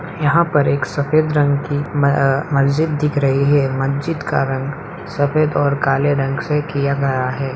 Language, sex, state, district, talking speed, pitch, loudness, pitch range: Hindi, female, Bihar, Darbhanga, 175 wpm, 140 Hz, -17 LUFS, 140-150 Hz